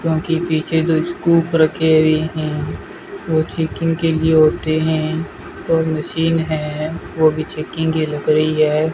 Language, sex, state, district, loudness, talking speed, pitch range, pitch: Hindi, male, Rajasthan, Bikaner, -17 LUFS, 155 wpm, 155-165 Hz, 160 Hz